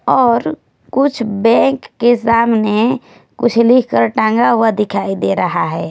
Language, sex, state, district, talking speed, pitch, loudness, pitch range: Hindi, female, Punjab, Kapurthala, 130 wpm, 230 Hz, -14 LUFS, 200-240 Hz